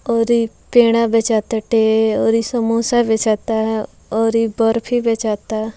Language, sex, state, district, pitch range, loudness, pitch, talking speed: Bhojpuri, female, Bihar, Muzaffarpur, 220-230 Hz, -17 LUFS, 225 Hz, 115 wpm